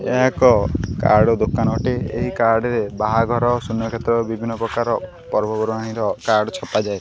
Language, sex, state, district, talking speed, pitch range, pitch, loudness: Odia, male, Odisha, Khordha, 145 wpm, 110-120 Hz, 115 Hz, -19 LUFS